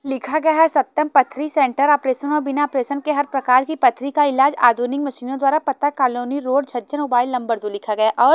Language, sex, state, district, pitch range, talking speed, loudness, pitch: Hindi, female, Haryana, Jhajjar, 255-290 Hz, 215 wpm, -19 LUFS, 275 Hz